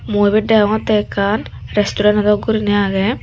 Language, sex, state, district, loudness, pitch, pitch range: Chakma, female, Tripura, Dhalai, -15 LUFS, 210 Hz, 205-215 Hz